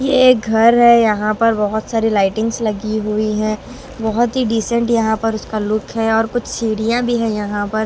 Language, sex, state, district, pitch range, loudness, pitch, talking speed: Hindi, female, Haryana, Rohtak, 215-235 Hz, -16 LUFS, 225 Hz, 215 wpm